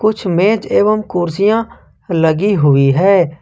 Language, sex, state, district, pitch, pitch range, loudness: Hindi, male, Jharkhand, Ranchi, 190 Hz, 165-210 Hz, -13 LUFS